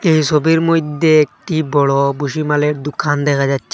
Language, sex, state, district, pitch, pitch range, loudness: Bengali, male, Assam, Hailakandi, 150 Hz, 145-155 Hz, -15 LUFS